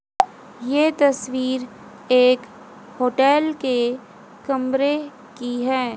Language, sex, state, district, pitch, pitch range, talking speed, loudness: Hindi, female, Haryana, Jhajjar, 255 Hz, 245-270 Hz, 80 wpm, -20 LUFS